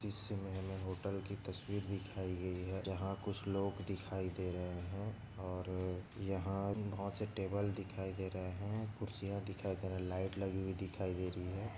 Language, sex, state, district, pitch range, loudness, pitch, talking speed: Hindi, male, Maharashtra, Nagpur, 95-100 Hz, -42 LUFS, 95 Hz, 185 wpm